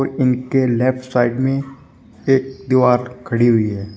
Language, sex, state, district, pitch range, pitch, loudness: Hindi, male, Uttar Pradesh, Shamli, 120-130 Hz, 125 Hz, -17 LUFS